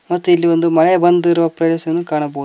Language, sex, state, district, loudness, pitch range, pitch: Kannada, male, Karnataka, Koppal, -14 LUFS, 165-175 Hz, 170 Hz